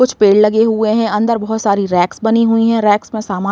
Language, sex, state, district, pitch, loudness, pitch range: Hindi, female, Uttar Pradesh, Varanasi, 220 Hz, -13 LUFS, 205-225 Hz